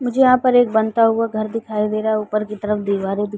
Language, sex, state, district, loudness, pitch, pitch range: Hindi, female, Uttar Pradesh, Varanasi, -18 LUFS, 215 Hz, 210-230 Hz